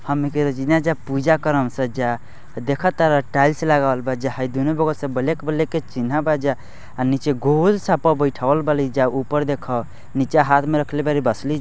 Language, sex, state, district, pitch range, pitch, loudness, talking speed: Hindi, male, Bihar, East Champaran, 130-155 Hz, 145 Hz, -20 LUFS, 220 wpm